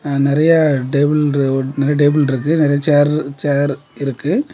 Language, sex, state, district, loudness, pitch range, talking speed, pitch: Tamil, male, Tamil Nadu, Kanyakumari, -15 LUFS, 140-150 Hz, 130 wpm, 145 Hz